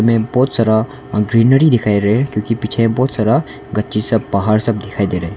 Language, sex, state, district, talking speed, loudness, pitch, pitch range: Hindi, male, Arunachal Pradesh, Longding, 235 wpm, -15 LUFS, 110 Hz, 105-120 Hz